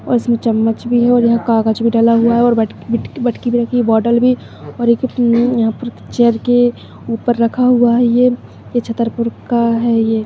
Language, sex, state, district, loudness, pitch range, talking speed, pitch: Hindi, female, Maharashtra, Chandrapur, -14 LUFS, 230-240 Hz, 185 wpm, 235 Hz